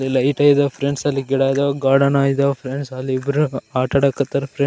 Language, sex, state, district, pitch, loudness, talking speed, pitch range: Kannada, male, Karnataka, Raichur, 140 Hz, -18 LUFS, 190 wpm, 135-140 Hz